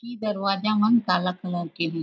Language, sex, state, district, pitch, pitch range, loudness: Chhattisgarhi, female, Chhattisgarh, Raigarh, 195 Hz, 175-215 Hz, -24 LUFS